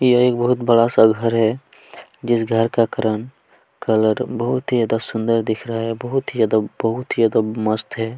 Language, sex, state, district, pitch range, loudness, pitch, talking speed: Hindi, male, Chhattisgarh, Kabirdham, 110-120 Hz, -19 LUFS, 115 Hz, 200 wpm